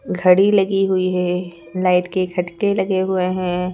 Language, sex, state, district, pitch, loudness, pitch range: Hindi, female, Madhya Pradesh, Bhopal, 185 Hz, -18 LUFS, 180-190 Hz